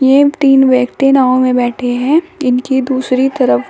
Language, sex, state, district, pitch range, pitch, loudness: Hindi, female, Uttar Pradesh, Shamli, 250-270 Hz, 260 Hz, -12 LUFS